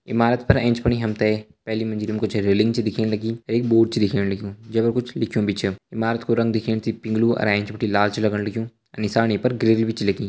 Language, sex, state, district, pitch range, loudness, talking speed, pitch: Hindi, male, Uttarakhand, Uttarkashi, 105-115 Hz, -22 LUFS, 260 wpm, 110 Hz